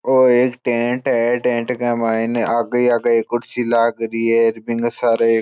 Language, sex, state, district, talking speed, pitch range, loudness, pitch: Marwari, male, Rajasthan, Churu, 175 wpm, 115-120 Hz, -17 LUFS, 120 Hz